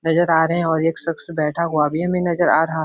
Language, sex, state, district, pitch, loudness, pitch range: Hindi, male, Bihar, Supaul, 165 Hz, -19 LUFS, 160-170 Hz